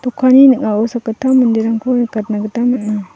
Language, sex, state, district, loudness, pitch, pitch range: Garo, female, Meghalaya, South Garo Hills, -13 LUFS, 235 Hz, 215-250 Hz